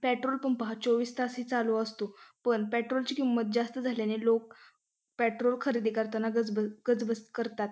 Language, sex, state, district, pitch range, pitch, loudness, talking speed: Marathi, female, Maharashtra, Pune, 225-250 Hz, 235 Hz, -31 LUFS, 155 wpm